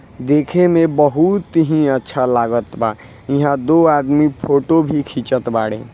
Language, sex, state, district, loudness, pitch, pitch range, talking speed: Hindi, male, Bihar, East Champaran, -15 LUFS, 140 Hz, 125-155 Hz, 130 wpm